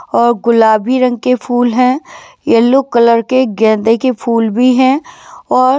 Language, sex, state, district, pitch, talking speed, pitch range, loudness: Hindi, female, Himachal Pradesh, Shimla, 245 Hz, 155 wpm, 230-255 Hz, -11 LUFS